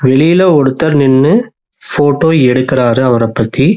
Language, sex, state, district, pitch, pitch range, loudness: Tamil, male, Tamil Nadu, Nilgiris, 140 Hz, 130-160 Hz, -10 LUFS